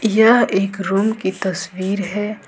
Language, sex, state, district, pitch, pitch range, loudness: Hindi, female, Jharkhand, Ranchi, 195 Hz, 190-215 Hz, -18 LUFS